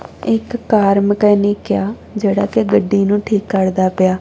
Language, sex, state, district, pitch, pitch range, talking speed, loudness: Punjabi, female, Punjab, Kapurthala, 200 Hz, 190-210 Hz, 170 wpm, -15 LUFS